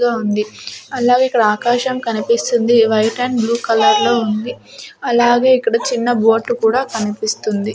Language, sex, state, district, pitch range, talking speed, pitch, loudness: Telugu, female, Andhra Pradesh, Sri Satya Sai, 220-245 Hz, 145 wpm, 235 Hz, -15 LUFS